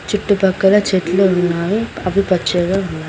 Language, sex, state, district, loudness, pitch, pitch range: Telugu, female, Telangana, Mahabubabad, -16 LUFS, 190 Hz, 180-200 Hz